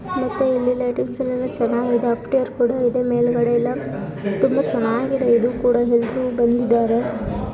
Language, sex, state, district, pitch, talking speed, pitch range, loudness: Kannada, female, Karnataka, Bijapur, 240 Hz, 125 wpm, 235-250 Hz, -20 LUFS